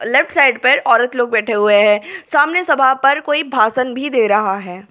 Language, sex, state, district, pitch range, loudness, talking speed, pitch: Hindi, female, Delhi, New Delhi, 215-285 Hz, -14 LUFS, 210 wpm, 255 Hz